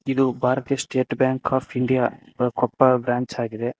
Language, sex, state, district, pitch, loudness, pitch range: Kannada, male, Karnataka, Koppal, 130 Hz, -22 LUFS, 125-130 Hz